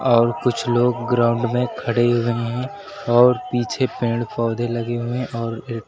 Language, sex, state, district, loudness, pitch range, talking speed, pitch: Hindi, male, Uttar Pradesh, Lucknow, -20 LUFS, 115-125 Hz, 165 wpm, 120 Hz